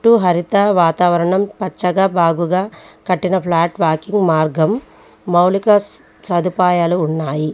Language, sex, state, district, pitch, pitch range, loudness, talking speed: Telugu, female, Telangana, Mahabubabad, 180 Hz, 170-195 Hz, -15 LUFS, 95 wpm